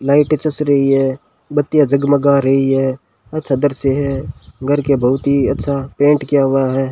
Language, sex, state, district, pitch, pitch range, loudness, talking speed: Hindi, male, Rajasthan, Bikaner, 140 Hz, 135-145 Hz, -15 LUFS, 175 wpm